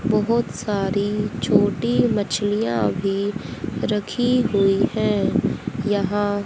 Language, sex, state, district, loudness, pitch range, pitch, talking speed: Hindi, female, Haryana, Jhajjar, -21 LUFS, 200-210 Hz, 205 Hz, 85 wpm